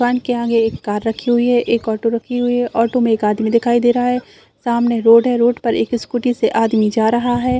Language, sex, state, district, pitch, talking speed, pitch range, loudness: Hindi, female, Chhattisgarh, Raigarh, 235 Hz, 260 wpm, 225-245 Hz, -16 LUFS